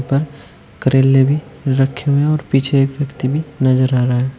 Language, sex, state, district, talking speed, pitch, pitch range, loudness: Hindi, male, Uttar Pradesh, Shamli, 190 wpm, 135 Hz, 130-145 Hz, -16 LUFS